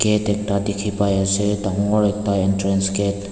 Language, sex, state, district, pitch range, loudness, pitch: Nagamese, male, Nagaland, Dimapur, 100-105 Hz, -20 LUFS, 100 Hz